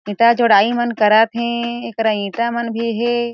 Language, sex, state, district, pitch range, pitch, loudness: Chhattisgarhi, female, Chhattisgarh, Jashpur, 220-235 Hz, 235 Hz, -16 LUFS